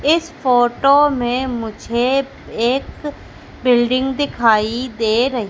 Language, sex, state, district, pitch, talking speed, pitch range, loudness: Hindi, female, Madhya Pradesh, Katni, 250 Hz, 110 wpm, 235-275 Hz, -17 LUFS